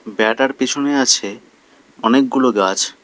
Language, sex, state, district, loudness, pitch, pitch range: Bengali, male, West Bengal, Alipurduar, -16 LUFS, 130 Hz, 110-135 Hz